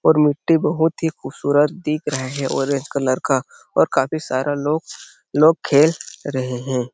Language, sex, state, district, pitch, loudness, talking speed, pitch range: Hindi, male, Chhattisgarh, Sarguja, 145 Hz, -19 LUFS, 175 wpm, 135-155 Hz